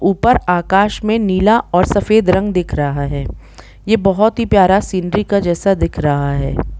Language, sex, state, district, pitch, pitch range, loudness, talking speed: Hindi, female, Jharkhand, Jamtara, 195 Hz, 175-210 Hz, -15 LUFS, 175 wpm